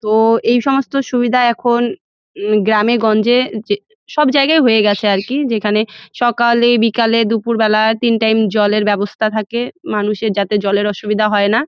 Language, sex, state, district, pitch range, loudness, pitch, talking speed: Bengali, female, West Bengal, Jalpaiguri, 210-240 Hz, -14 LUFS, 225 Hz, 160 wpm